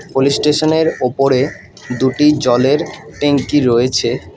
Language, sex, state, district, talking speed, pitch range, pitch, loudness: Bengali, male, West Bengal, Alipurduar, 95 wpm, 130-150 Hz, 135 Hz, -14 LUFS